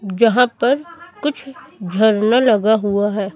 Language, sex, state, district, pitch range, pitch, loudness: Hindi, female, Chhattisgarh, Raipur, 205-260 Hz, 225 Hz, -16 LUFS